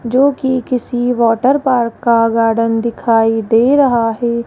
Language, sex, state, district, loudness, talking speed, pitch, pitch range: Hindi, female, Rajasthan, Jaipur, -13 LUFS, 150 wpm, 235 Hz, 230-255 Hz